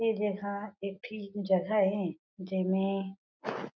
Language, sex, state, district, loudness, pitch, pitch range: Chhattisgarhi, female, Chhattisgarh, Jashpur, -33 LUFS, 195 Hz, 190-205 Hz